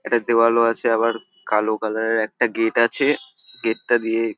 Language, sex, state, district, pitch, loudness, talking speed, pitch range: Bengali, male, West Bengal, North 24 Parganas, 115 Hz, -20 LUFS, 190 wpm, 110-115 Hz